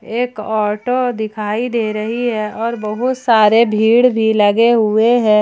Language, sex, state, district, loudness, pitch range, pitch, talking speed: Hindi, female, Jharkhand, Ranchi, -15 LUFS, 215-235 Hz, 225 Hz, 155 wpm